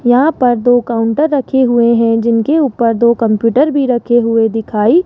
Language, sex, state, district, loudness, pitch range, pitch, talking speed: Hindi, male, Rajasthan, Jaipur, -12 LUFS, 230-260 Hz, 240 Hz, 180 wpm